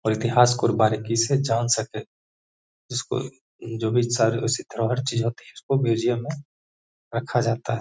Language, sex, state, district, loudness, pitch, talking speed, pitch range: Hindi, male, Bihar, Gaya, -23 LUFS, 115 Hz, 155 wpm, 115-125 Hz